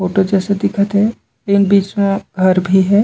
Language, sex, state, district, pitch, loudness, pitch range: Chhattisgarhi, male, Chhattisgarh, Raigarh, 200 Hz, -14 LUFS, 190-200 Hz